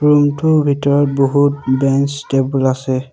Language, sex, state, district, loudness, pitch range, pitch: Assamese, male, Assam, Sonitpur, -15 LUFS, 135-145 Hz, 140 Hz